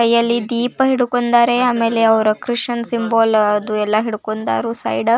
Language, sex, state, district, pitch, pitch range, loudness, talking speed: Kannada, female, Karnataka, Belgaum, 230 Hz, 215-240 Hz, -16 LUFS, 140 wpm